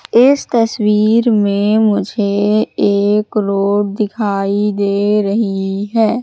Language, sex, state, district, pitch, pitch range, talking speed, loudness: Hindi, female, Madhya Pradesh, Katni, 210 Hz, 200-220 Hz, 95 wpm, -14 LUFS